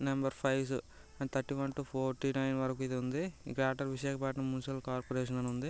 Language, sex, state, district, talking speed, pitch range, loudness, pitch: Telugu, male, Andhra Pradesh, Visakhapatnam, 160 wpm, 130-135 Hz, -36 LUFS, 135 Hz